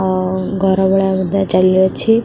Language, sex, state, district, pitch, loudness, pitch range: Odia, female, Odisha, Khordha, 190 Hz, -14 LUFS, 185-195 Hz